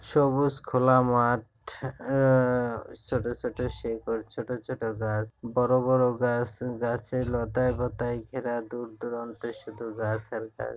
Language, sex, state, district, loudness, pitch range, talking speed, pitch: Bengali, male, West Bengal, Jhargram, -28 LUFS, 115-125 Hz, 135 wpm, 120 Hz